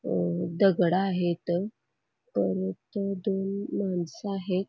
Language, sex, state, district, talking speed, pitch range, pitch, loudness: Marathi, female, Karnataka, Belgaum, 90 wpm, 175-195 Hz, 185 Hz, -28 LUFS